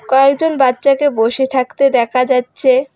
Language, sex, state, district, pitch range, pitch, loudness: Bengali, female, West Bengal, Alipurduar, 250-275 Hz, 265 Hz, -13 LUFS